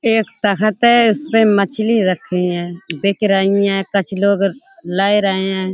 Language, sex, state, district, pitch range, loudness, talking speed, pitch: Hindi, female, Uttar Pradesh, Budaun, 190-220 Hz, -15 LUFS, 155 wpm, 200 Hz